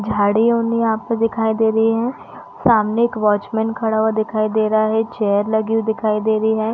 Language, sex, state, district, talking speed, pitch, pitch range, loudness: Hindi, female, Chhattisgarh, Raigarh, 195 wpm, 220 Hz, 215-225 Hz, -18 LUFS